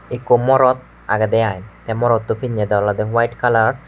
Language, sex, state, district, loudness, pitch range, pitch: Chakma, male, Tripura, West Tripura, -17 LUFS, 110-120 Hz, 115 Hz